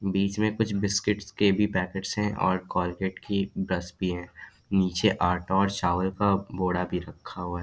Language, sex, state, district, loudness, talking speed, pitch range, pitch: Hindi, male, Bihar, Darbhanga, -27 LUFS, 195 wpm, 90-100 Hz, 95 Hz